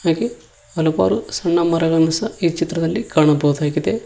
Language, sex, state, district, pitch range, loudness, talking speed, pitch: Kannada, male, Karnataka, Koppal, 155-170 Hz, -18 LUFS, 120 wpm, 165 Hz